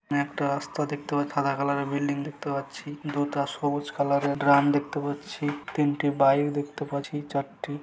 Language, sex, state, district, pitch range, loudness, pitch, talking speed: Bengali, male, West Bengal, Malda, 140-145 Hz, -27 LUFS, 145 Hz, 160 wpm